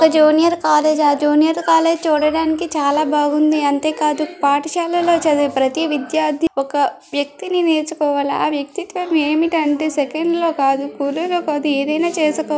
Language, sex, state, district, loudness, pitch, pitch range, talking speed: Telugu, female, Andhra Pradesh, Srikakulam, -17 LUFS, 305 Hz, 290-325 Hz, 130 wpm